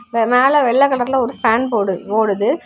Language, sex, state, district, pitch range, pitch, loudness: Tamil, female, Tamil Nadu, Kanyakumari, 220-255 Hz, 240 Hz, -15 LUFS